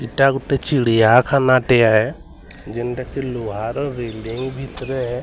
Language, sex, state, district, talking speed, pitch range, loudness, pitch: Odia, male, Odisha, Sambalpur, 125 wpm, 115-135 Hz, -18 LUFS, 125 Hz